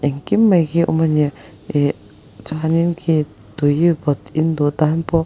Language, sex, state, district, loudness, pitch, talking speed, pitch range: Mizo, male, Mizoram, Aizawl, -18 LUFS, 155 Hz, 170 wpm, 145-165 Hz